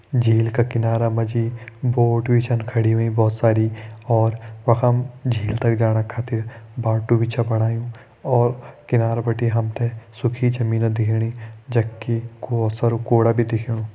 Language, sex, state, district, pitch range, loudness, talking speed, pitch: Hindi, male, Uttarakhand, Tehri Garhwal, 115-120 Hz, -21 LUFS, 155 wpm, 115 Hz